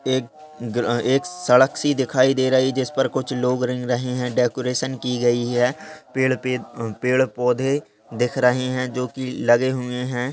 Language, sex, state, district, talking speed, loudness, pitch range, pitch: Hindi, male, Bihar, Lakhisarai, 185 wpm, -21 LUFS, 125-130 Hz, 125 Hz